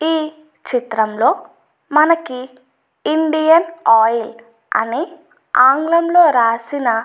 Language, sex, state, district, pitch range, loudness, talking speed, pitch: Telugu, female, Andhra Pradesh, Anantapur, 230-325 Hz, -15 LUFS, 75 wpm, 285 Hz